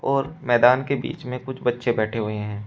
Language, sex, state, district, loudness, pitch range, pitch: Hindi, male, Uttar Pradesh, Shamli, -23 LUFS, 115-135 Hz, 125 Hz